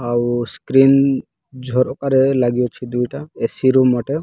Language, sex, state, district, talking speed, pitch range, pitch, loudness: Odia, male, Odisha, Malkangiri, 130 wpm, 125-135 Hz, 130 Hz, -17 LUFS